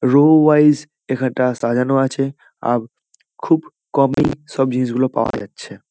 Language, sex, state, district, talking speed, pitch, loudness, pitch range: Bengali, male, West Bengal, Kolkata, 120 wpm, 135 Hz, -17 LUFS, 125-150 Hz